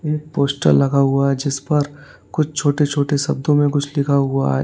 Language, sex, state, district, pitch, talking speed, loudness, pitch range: Hindi, male, Uttar Pradesh, Lalitpur, 145 Hz, 195 wpm, -18 LUFS, 140-145 Hz